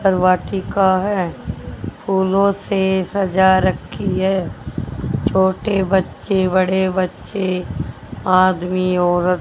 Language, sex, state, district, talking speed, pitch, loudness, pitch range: Hindi, female, Haryana, Rohtak, 90 wpm, 190 Hz, -18 LUFS, 185-190 Hz